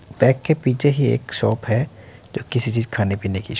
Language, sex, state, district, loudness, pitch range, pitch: Hindi, male, Uttar Pradesh, Muzaffarnagar, -20 LUFS, 110-130 Hz, 120 Hz